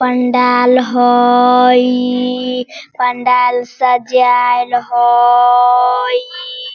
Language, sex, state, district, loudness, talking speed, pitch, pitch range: Hindi, female, Bihar, Sitamarhi, -12 LUFS, 45 wpm, 250 Hz, 245-250 Hz